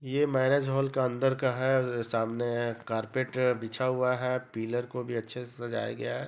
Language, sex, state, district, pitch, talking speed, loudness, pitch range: Hindi, male, Jharkhand, Sahebganj, 125 Hz, 190 wpm, -30 LUFS, 120-130 Hz